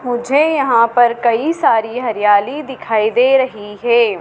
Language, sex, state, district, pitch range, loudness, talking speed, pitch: Hindi, female, Madhya Pradesh, Dhar, 220-265 Hz, -14 LUFS, 140 wpm, 240 Hz